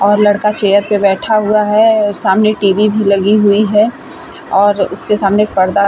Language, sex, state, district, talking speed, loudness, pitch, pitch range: Hindi, female, Uttar Pradesh, Varanasi, 185 wpm, -12 LUFS, 210 Hz, 200-215 Hz